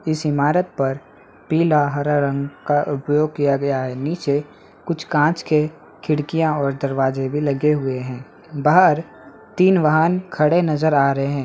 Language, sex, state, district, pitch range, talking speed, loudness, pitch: Hindi, male, Bihar, Muzaffarpur, 140-155 Hz, 155 wpm, -19 LUFS, 150 Hz